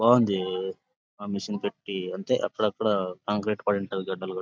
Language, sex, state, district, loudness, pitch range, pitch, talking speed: Telugu, male, Andhra Pradesh, Anantapur, -28 LUFS, 95-105 Hz, 100 Hz, 135 wpm